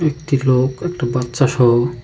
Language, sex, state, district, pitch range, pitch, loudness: Bengali, male, West Bengal, Cooch Behar, 120-140 Hz, 130 Hz, -17 LUFS